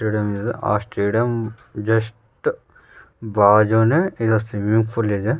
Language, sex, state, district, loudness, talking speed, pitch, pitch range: Kannada, male, Karnataka, Raichur, -20 LUFS, 100 wpm, 110 Hz, 105-115 Hz